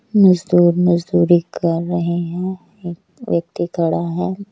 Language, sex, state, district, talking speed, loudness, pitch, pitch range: Hindi, male, Odisha, Nuapada, 105 wpm, -17 LUFS, 175 Hz, 170-185 Hz